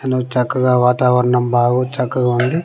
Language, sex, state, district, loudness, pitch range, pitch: Telugu, male, Andhra Pradesh, Manyam, -15 LUFS, 125-130 Hz, 125 Hz